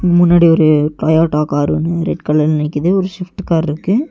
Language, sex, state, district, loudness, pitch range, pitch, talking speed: Tamil, male, Tamil Nadu, Nilgiris, -14 LUFS, 150-175 Hz, 165 Hz, 175 wpm